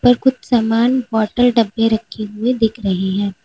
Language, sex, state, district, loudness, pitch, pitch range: Hindi, female, Uttar Pradesh, Lalitpur, -16 LUFS, 225 Hz, 215-245 Hz